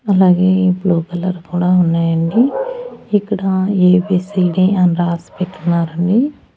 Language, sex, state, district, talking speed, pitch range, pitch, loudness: Telugu, female, Andhra Pradesh, Annamaya, 90 wpm, 175-195 Hz, 185 Hz, -15 LUFS